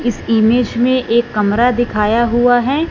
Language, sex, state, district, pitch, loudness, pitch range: Hindi, female, Punjab, Fazilka, 240 Hz, -14 LUFS, 225-245 Hz